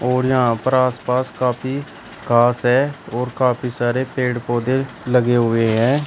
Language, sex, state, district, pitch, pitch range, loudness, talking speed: Hindi, male, Uttar Pradesh, Shamli, 125 Hz, 120-130 Hz, -18 LUFS, 160 wpm